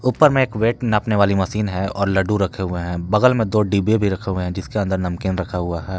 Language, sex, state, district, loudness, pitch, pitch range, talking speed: Hindi, male, Jharkhand, Palamu, -19 LUFS, 100 Hz, 95-105 Hz, 260 wpm